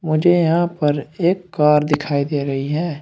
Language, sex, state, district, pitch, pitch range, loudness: Hindi, male, Uttar Pradesh, Shamli, 150 Hz, 145-170 Hz, -18 LUFS